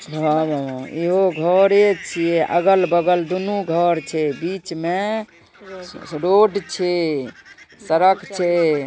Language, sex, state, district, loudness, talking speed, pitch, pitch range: Maithili, male, Bihar, Darbhanga, -19 LUFS, 115 wpm, 175 Hz, 160-190 Hz